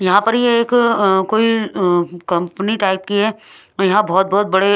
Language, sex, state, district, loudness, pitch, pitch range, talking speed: Hindi, female, Punjab, Pathankot, -16 LUFS, 200 Hz, 190-220 Hz, 175 wpm